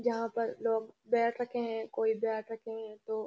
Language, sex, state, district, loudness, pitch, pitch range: Hindi, female, Uttarakhand, Uttarkashi, -34 LUFS, 225 Hz, 220-230 Hz